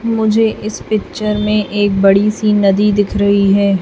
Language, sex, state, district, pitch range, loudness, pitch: Hindi, female, Chhattisgarh, Raipur, 200-215 Hz, -13 LUFS, 210 Hz